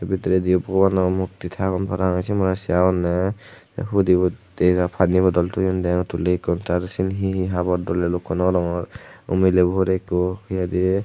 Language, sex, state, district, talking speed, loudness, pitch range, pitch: Chakma, male, Tripura, Unakoti, 170 wpm, -21 LUFS, 90-95 Hz, 90 Hz